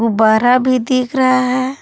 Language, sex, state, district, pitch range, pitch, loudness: Hindi, female, Jharkhand, Palamu, 240-255 Hz, 255 Hz, -14 LUFS